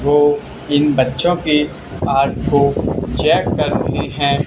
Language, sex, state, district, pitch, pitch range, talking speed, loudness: Hindi, male, Haryana, Charkhi Dadri, 140 Hz, 130-145 Hz, 135 wpm, -16 LUFS